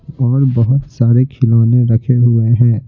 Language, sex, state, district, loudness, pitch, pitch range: Hindi, male, Bihar, Patna, -12 LUFS, 120 Hz, 115-130 Hz